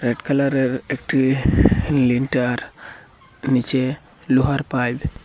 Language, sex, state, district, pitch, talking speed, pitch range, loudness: Bengali, male, Assam, Hailakandi, 130 Hz, 90 wpm, 125-135 Hz, -20 LUFS